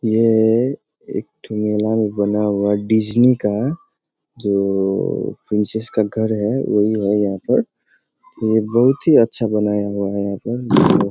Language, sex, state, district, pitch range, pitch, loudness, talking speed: Hindi, male, Bihar, East Champaran, 105-115 Hz, 110 Hz, -18 LUFS, 140 wpm